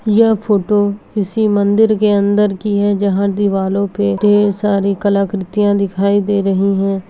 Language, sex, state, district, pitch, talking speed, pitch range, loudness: Hindi, female, Bihar, Jahanabad, 205 Hz, 150 wpm, 200-205 Hz, -14 LUFS